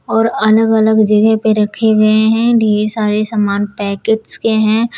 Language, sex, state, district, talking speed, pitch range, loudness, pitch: Hindi, female, Uttar Pradesh, Shamli, 170 wpm, 210-220 Hz, -13 LUFS, 220 Hz